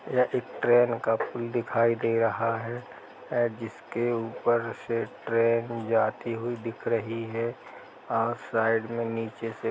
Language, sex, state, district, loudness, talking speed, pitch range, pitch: Hindi, male, Uttar Pradesh, Jalaun, -28 LUFS, 155 wpm, 115-120 Hz, 115 Hz